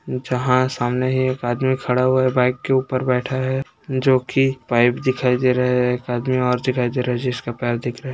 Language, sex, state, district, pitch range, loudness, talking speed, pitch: Hindi, male, Rajasthan, Nagaur, 125-130 Hz, -20 LUFS, 235 wpm, 125 Hz